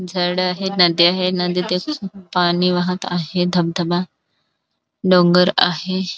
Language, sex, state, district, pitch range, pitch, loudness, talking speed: Marathi, female, Maharashtra, Dhule, 175-185 Hz, 180 Hz, -17 LUFS, 95 wpm